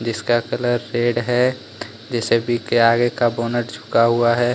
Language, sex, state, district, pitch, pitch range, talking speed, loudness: Hindi, male, Jharkhand, Deoghar, 120 Hz, 115-120 Hz, 160 wpm, -19 LUFS